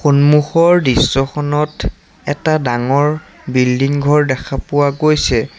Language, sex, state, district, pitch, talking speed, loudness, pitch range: Assamese, male, Assam, Sonitpur, 145 Hz, 95 wpm, -14 LUFS, 135-150 Hz